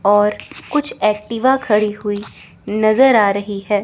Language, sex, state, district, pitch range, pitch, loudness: Hindi, female, Chandigarh, Chandigarh, 205-230 Hz, 210 Hz, -16 LUFS